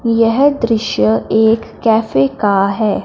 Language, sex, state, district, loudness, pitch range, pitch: Hindi, female, Punjab, Fazilka, -14 LUFS, 195-230 Hz, 220 Hz